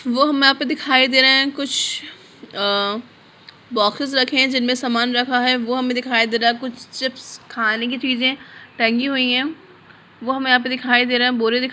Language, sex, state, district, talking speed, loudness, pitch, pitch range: Hindi, female, Bihar, Purnia, 210 wpm, -18 LUFS, 255 Hz, 240-265 Hz